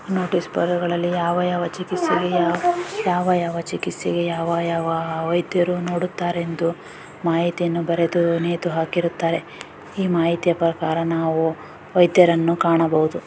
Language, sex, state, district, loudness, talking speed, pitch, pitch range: Kannada, female, Karnataka, Raichur, -21 LUFS, 100 wpm, 170 Hz, 165-175 Hz